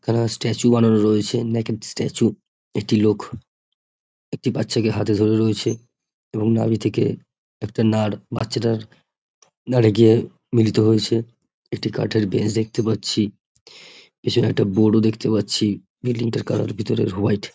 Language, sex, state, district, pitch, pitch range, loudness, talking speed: Bengali, male, West Bengal, North 24 Parganas, 110 Hz, 105-115 Hz, -20 LUFS, 135 wpm